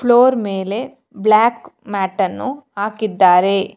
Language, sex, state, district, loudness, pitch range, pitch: Kannada, female, Karnataka, Bangalore, -16 LUFS, 195-245 Hz, 215 Hz